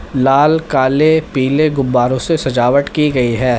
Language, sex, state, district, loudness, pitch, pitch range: Hindi, male, Uttar Pradesh, Lalitpur, -13 LUFS, 135 Hz, 130-150 Hz